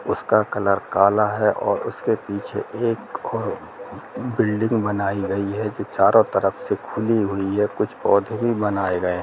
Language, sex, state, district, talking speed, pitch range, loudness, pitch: Hindi, male, Jharkhand, Jamtara, 145 wpm, 100-110 Hz, -21 LUFS, 105 Hz